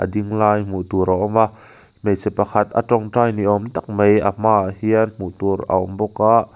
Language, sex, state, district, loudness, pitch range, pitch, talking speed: Mizo, male, Mizoram, Aizawl, -18 LUFS, 95-110 Hz, 105 Hz, 210 wpm